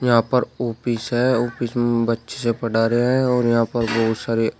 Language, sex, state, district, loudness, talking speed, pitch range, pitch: Hindi, male, Uttar Pradesh, Shamli, -20 LUFS, 195 wpm, 115-120 Hz, 120 Hz